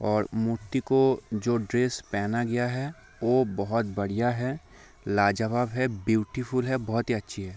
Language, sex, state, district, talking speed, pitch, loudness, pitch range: Hindi, male, Bihar, Sitamarhi, 160 wpm, 115 Hz, -27 LUFS, 105-125 Hz